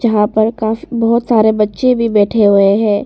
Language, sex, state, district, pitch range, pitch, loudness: Hindi, female, Arunachal Pradesh, Longding, 210-230 Hz, 220 Hz, -12 LUFS